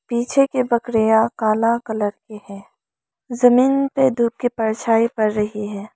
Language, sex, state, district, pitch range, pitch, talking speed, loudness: Hindi, female, Arunachal Pradesh, Lower Dibang Valley, 215-245 Hz, 230 Hz, 150 wpm, -18 LUFS